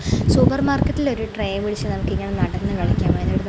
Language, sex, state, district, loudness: Malayalam, female, Kerala, Kozhikode, -21 LUFS